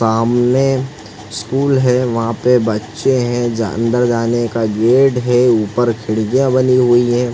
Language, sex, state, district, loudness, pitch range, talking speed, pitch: Hindi, male, Chhattisgarh, Sarguja, -14 LUFS, 115-125 Hz, 145 wpm, 120 Hz